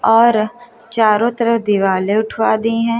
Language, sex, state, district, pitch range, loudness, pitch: Hindi, female, Uttar Pradesh, Hamirpur, 215-230 Hz, -15 LUFS, 225 Hz